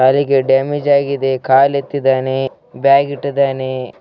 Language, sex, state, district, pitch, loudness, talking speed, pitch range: Kannada, male, Karnataka, Raichur, 135 Hz, -15 LUFS, 90 wpm, 130-140 Hz